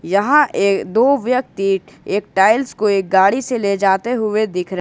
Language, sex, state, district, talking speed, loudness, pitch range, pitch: Hindi, male, Jharkhand, Ranchi, 185 wpm, -16 LUFS, 195-245 Hz, 200 Hz